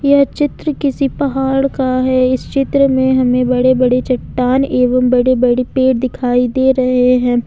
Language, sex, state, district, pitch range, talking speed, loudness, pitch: Hindi, female, Jharkhand, Ranchi, 250-270 Hz, 170 wpm, -14 LUFS, 255 Hz